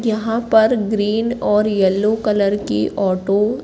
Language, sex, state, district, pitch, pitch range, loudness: Hindi, female, Madhya Pradesh, Katni, 210 Hz, 200-225 Hz, -17 LUFS